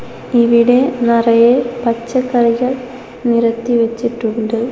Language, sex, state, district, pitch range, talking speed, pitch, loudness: Malayalam, female, Kerala, Kozhikode, 230-245 Hz, 65 wpm, 235 Hz, -14 LUFS